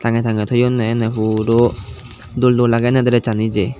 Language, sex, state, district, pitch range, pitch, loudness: Chakma, male, Tripura, Dhalai, 110-120 Hz, 115 Hz, -16 LUFS